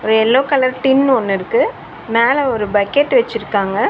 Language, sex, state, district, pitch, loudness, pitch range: Tamil, female, Tamil Nadu, Chennai, 235 Hz, -15 LUFS, 210-265 Hz